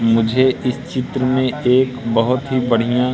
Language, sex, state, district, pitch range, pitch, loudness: Hindi, male, Madhya Pradesh, Katni, 120-130 Hz, 125 Hz, -17 LUFS